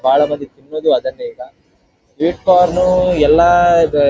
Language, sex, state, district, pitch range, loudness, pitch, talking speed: Kannada, male, Karnataka, Dharwad, 145-180 Hz, -13 LUFS, 170 Hz, 145 wpm